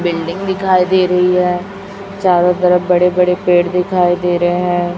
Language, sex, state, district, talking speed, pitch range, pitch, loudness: Hindi, male, Chhattisgarh, Raipur, 170 wpm, 175-185 Hz, 180 Hz, -13 LUFS